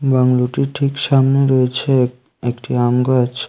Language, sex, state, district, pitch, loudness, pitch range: Bengali, male, Tripura, Unakoti, 130 Hz, -16 LUFS, 125-135 Hz